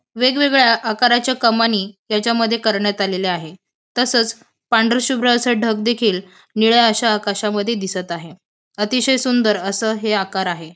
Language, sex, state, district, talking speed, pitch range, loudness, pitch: Marathi, female, Maharashtra, Aurangabad, 130 wpm, 200-235 Hz, -17 LUFS, 225 Hz